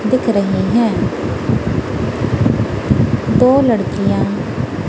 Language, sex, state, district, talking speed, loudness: Hindi, female, Punjab, Kapurthala, 60 wpm, -16 LUFS